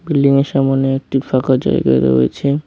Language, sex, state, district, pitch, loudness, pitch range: Bengali, male, West Bengal, Cooch Behar, 135 Hz, -15 LUFS, 130-140 Hz